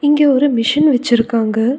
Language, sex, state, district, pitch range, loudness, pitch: Tamil, female, Tamil Nadu, Nilgiris, 230-290 Hz, -14 LUFS, 255 Hz